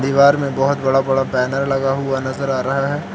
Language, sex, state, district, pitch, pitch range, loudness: Hindi, male, Jharkhand, Palamu, 135 Hz, 135-140 Hz, -17 LUFS